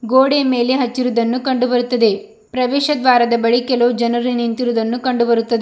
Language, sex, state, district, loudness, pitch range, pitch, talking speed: Kannada, female, Karnataka, Bidar, -16 LUFS, 235-255 Hz, 245 Hz, 115 wpm